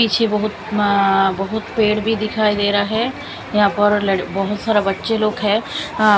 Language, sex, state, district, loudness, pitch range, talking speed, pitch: Hindi, female, Chandigarh, Chandigarh, -18 LUFS, 205-220 Hz, 185 wpm, 210 Hz